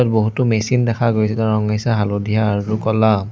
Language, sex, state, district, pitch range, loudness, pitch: Assamese, male, Assam, Sonitpur, 105-115 Hz, -17 LUFS, 110 Hz